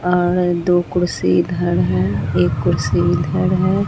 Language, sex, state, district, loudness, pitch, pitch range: Hindi, female, Bihar, Katihar, -17 LUFS, 175 Hz, 170-180 Hz